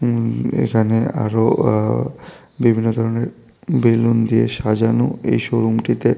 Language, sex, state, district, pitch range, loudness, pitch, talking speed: Bengali, male, Tripura, West Tripura, 110-120 Hz, -18 LUFS, 115 Hz, 125 wpm